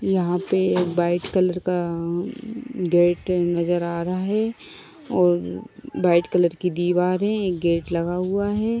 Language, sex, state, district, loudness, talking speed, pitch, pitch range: Hindi, female, Uttar Pradesh, Ghazipur, -22 LUFS, 150 wpm, 180 Hz, 175-190 Hz